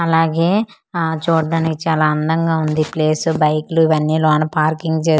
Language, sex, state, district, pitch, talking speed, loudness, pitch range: Telugu, female, Andhra Pradesh, Manyam, 160 Hz, 140 wpm, -17 LUFS, 155-165 Hz